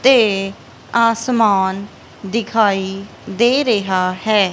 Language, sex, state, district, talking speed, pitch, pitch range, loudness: Punjabi, female, Punjab, Kapurthala, 80 wpm, 210 Hz, 195-230 Hz, -16 LUFS